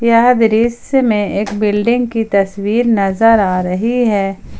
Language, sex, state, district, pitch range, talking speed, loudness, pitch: Hindi, female, Jharkhand, Ranchi, 200-235 Hz, 145 wpm, -14 LUFS, 220 Hz